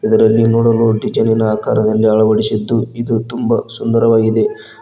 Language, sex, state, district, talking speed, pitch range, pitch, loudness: Kannada, male, Karnataka, Koppal, 100 wpm, 110-115 Hz, 115 Hz, -14 LUFS